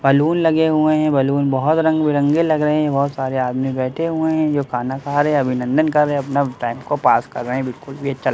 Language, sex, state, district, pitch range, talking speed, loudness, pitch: Hindi, male, Bihar, Katihar, 130-155 Hz, 245 wpm, -18 LUFS, 140 Hz